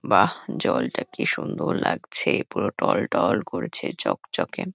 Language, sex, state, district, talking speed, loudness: Bengali, female, West Bengal, Kolkata, 115 wpm, -24 LUFS